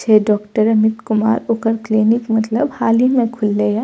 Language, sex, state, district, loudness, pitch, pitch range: Maithili, female, Bihar, Purnia, -16 LUFS, 220 Hz, 215-230 Hz